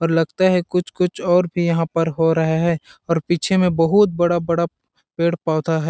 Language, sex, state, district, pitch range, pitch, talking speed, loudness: Hindi, male, Chhattisgarh, Balrampur, 165-175 Hz, 170 Hz, 185 wpm, -19 LUFS